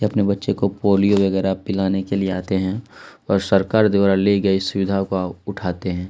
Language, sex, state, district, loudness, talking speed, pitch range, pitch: Hindi, male, Chhattisgarh, Kabirdham, -19 LUFS, 205 wpm, 95-100 Hz, 95 Hz